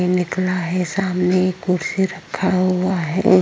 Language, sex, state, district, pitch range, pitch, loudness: Hindi, female, Uttar Pradesh, Jyotiba Phule Nagar, 180-190 Hz, 185 Hz, -19 LUFS